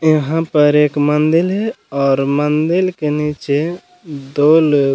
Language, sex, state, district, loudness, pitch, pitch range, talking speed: Hindi, male, Bihar, Gaya, -15 LUFS, 150 Hz, 145-165 Hz, 145 wpm